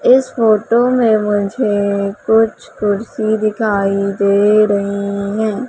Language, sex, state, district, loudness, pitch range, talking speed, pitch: Hindi, female, Madhya Pradesh, Umaria, -15 LUFS, 200-225 Hz, 105 wpm, 210 Hz